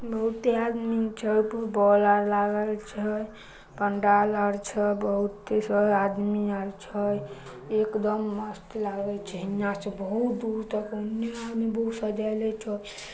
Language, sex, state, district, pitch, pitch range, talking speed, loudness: Maithili, female, Bihar, Samastipur, 210 Hz, 205-220 Hz, 135 wpm, -27 LUFS